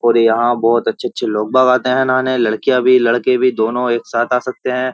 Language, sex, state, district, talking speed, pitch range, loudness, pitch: Hindi, male, Uttar Pradesh, Jyotiba Phule Nagar, 220 wpm, 115-130 Hz, -15 LUFS, 125 Hz